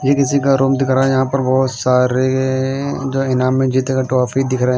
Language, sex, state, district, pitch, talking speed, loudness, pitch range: Hindi, male, Himachal Pradesh, Shimla, 130 Hz, 240 wpm, -16 LUFS, 130-135 Hz